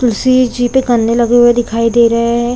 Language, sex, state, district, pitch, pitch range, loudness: Hindi, female, Chhattisgarh, Bilaspur, 240 Hz, 235-245 Hz, -11 LUFS